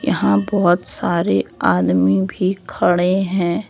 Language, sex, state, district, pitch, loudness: Hindi, female, Jharkhand, Deoghar, 175 Hz, -17 LUFS